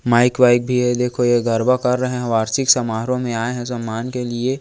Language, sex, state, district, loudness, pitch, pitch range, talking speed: Hindi, male, Chhattisgarh, Korba, -18 LUFS, 125 Hz, 120-125 Hz, 220 wpm